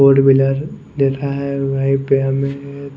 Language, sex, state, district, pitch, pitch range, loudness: Hindi, male, Chhattisgarh, Raipur, 135 Hz, 135-140 Hz, -16 LUFS